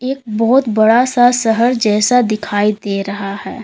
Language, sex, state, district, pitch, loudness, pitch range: Hindi, female, Uttar Pradesh, Lalitpur, 225 Hz, -14 LUFS, 210-245 Hz